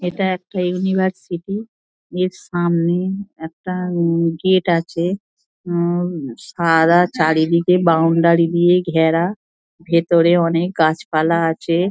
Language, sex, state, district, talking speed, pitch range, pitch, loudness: Bengali, female, West Bengal, Dakshin Dinajpur, 90 wpm, 165-180 Hz, 170 Hz, -17 LUFS